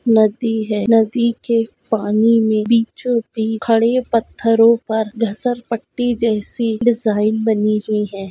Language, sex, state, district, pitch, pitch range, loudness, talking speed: Hindi, female, Goa, North and South Goa, 225 Hz, 215-230 Hz, -17 LUFS, 130 wpm